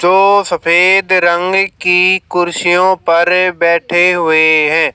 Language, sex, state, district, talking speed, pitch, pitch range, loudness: Hindi, male, Haryana, Jhajjar, 110 wpm, 175 Hz, 170-185 Hz, -10 LUFS